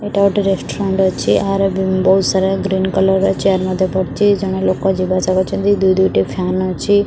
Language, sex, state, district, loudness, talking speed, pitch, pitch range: Odia, female, Odisha, Khordha, -15 LUFS, 195 wpm, 190 Hz, 185-195 Hz